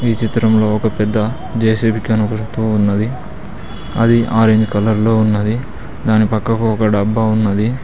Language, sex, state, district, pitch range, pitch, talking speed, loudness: Telugu, male, Telangana, Mahabubabad, 110-115 Hz, 110 Hz, 120 wpm, -15 LUFS